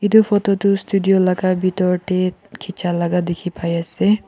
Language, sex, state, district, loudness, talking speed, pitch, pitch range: Nagamese, female, Nagaland, Kohima, -18 LUFS, 170 wpm, 185 Hz, 180-200 Hz